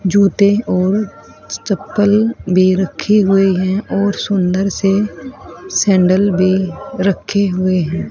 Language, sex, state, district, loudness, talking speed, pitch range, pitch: Hindi, female, Haryana, Rohtak, -15 LUFS, 110 wpm, 185-205 Hz, 195 Hz